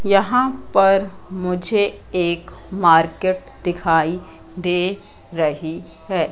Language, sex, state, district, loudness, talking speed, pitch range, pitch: Hindi, female, Madhya Pradesh, Katni, -19 LUFS, 85 wpm, 165-195 Hz, 180 Hz